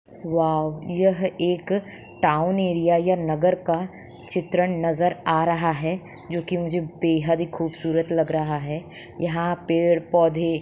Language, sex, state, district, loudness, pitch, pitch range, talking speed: Hindi, female, Jharkhand, Sahebganj, -23 LUFS, 170 Hz, 165-175 Hz, 135 wpm